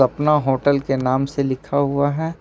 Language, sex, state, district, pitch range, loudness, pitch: Hindi, male, Jharkhand, Ranchi, 135-145 Hz, -19 LUFS, 140 Hz